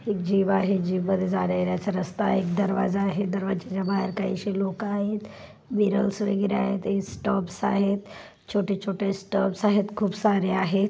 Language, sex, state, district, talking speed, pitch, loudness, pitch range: Marathi, female, Maharashtra, Solapur, 115 wpm, 195 Hz, -26 LUFS, 190-205 Hz